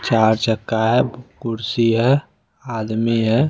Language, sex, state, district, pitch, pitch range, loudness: Hindi, male, Bihar, West Champaran, 115 Hz, 110-125 Hz, -19 LUFS